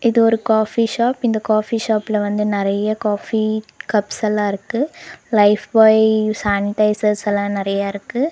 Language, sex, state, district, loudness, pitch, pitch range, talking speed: Tamil, female, Tamil Nadu, Nilgiris, -18 LUFS, 215 Hz, 205-225 Hz, 110 wpm